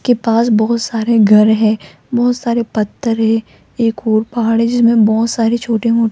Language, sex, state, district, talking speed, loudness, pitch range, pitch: Hindi, female, Rajasthan, Jaipur, 185 wpm, -14 LUFS, 220-235 Hz, 225 Hz